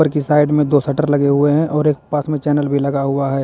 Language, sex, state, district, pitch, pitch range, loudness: Hindi, male, Uttar Pradesh, Lalitpur, 145 Hz, 140-150 Hz, -16 LUFS